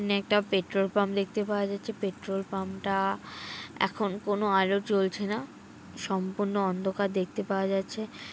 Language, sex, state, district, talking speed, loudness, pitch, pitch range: Bengali, female, West Bengal, Kolkata, 145 wpm, -30 LUFS, 200 Hz, 195-205 Hz